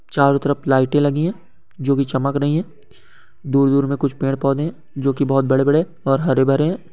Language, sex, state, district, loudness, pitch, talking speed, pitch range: Hindi, male, West Bengal, Kolkata, -18 LUFS, 140 Hz, 215 wpm, 135-150 Hz